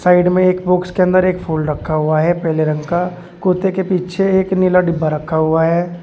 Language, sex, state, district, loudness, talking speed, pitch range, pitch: Hindi, male, Uttar Pradesh, Shamli, -15 LUFS, 230 wpm, 160-185 Hz, 180 Hz